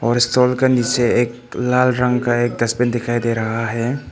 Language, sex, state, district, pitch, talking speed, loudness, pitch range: Hindi, male, Arunachal Pradesh, Papum Pare, 120 Hz, 220 wpm, -18 LUFS, 120-125 Hz